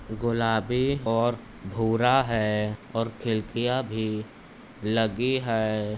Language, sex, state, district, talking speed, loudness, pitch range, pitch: Hindi, male, Uttar Pradesh, Budaun, 90 wpm, -26 LUFS, 110-120 Hz, 115 Hz